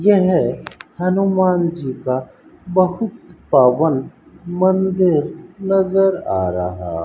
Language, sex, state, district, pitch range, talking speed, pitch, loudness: Hindi, male, Rajasthan, Bikaner, 130-190 Hz, 95 wpm, 180 Hz, -17 LUFS